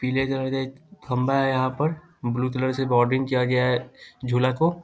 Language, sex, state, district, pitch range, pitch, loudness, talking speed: Hindi, male, Bihar, Muzaffarpur, 125-135 Hz, 130 Hz, -24 LUFS, 210 wpm